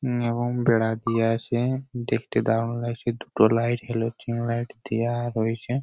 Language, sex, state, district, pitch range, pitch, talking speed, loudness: Bengali, male, West Bengal, Jhargram, 115-120 Hz, 120 Hz, 145 wpm, -25 LUFS